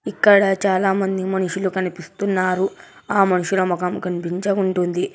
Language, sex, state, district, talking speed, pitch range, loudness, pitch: Telugu, male, Telangana, Hyderabad, 95 wpm, 180-195 Hz, -20 LUFS, 190 Hz